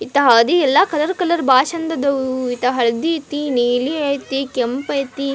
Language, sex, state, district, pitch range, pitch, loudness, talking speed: Kannada, female, Karnataka, Dharwad, 255-300 Hz, 275 Hz, -17 LUFS, 180 wpm